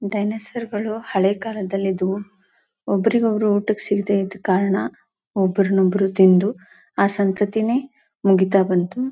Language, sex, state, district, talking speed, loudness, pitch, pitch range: Kannada, female, Karnataka, Gulbarga, 110 wpm, -20 LUFS, 200 Hz, 195-215 Hz